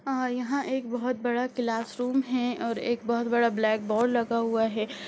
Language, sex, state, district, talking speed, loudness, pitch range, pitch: Hindi, female, Bihar, Jahanabad, 175 wpm, -27 LUFS, 230-250 Hz, 240 Hz